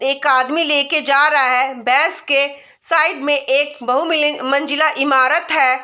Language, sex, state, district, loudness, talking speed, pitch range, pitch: Hindi, female, Bihar, Saharsa, -15 LUFS, 175 wpm, 265-305 Hz, 280 Hz